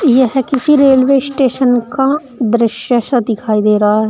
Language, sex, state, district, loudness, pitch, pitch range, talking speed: Hindi, female, Uttar Pradesh, Shamli, -12 LUFS, 255 Hz, 230-270 Hz, 160 wpm